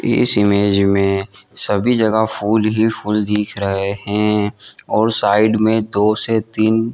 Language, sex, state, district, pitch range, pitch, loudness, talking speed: Hindi, male, Chhattisgarh, Bilaspur, 100-110 Hz, 105 Hz, -16 LUFS, 145 wpm